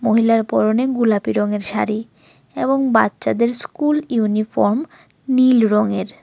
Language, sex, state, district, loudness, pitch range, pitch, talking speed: Bengali, female, Tripura, West Tripura, -18 LUFS, 215-255 Hz, 230 Hz, 105 wpm